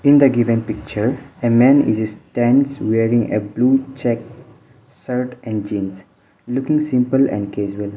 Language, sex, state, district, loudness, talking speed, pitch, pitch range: English, male, Mizoram, Aizawl, -18 LUFS, 145 wpm, 120 Hz, 110-135 Hz